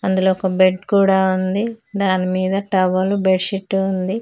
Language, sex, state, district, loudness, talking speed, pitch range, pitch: Telugu, female, Telangana, Mahabubabad, -18 LUFS, 155 wpm, 185-195 Hz, 190 Hz